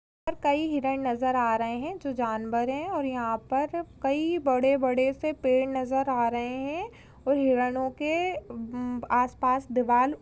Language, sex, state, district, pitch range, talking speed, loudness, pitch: Hindi, female, Chhattisgarh, Kabirdham, 245-285 Hz, 150 wpm, -27 LUFS, 260 Hz